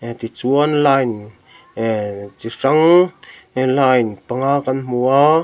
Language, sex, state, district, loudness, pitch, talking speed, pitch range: Mizo, male, Mizoram, Aizawl, -16 LUFS, 130 Hz, 130 wpm, 115-140 Hz